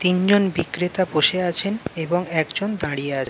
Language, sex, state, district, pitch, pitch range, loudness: Bengali, male, West Bengal, Jalpaiguri, 180 Hz, 160-190 Hz, -21 LUFS